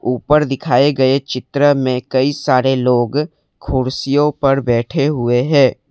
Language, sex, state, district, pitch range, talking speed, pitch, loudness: Hindi, male, Assam, Kamrup Metropolitan, 125-145 Hz, 130 wpm, 135 Hz, -15 LUFS